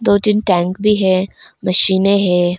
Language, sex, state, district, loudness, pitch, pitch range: Hindi, female, Arunachal Pradesh, Longding, -14 LUFS, 190 Hz, 180-200 Hz